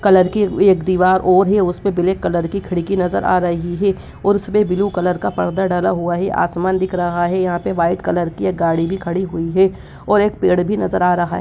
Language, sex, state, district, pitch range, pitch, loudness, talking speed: Hindi, female, Bihar, Lakhisarai, 175-195 Hz, 180 Hz, -17 LUFS, 245 wpm